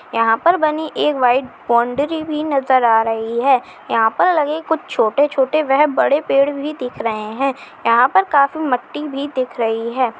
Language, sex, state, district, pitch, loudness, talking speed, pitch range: Chhattisgarhi, female, Chhattisgarh, Kabirdham, 275 Hz, -17 LUFS, 180 wpm, 235-300 Hz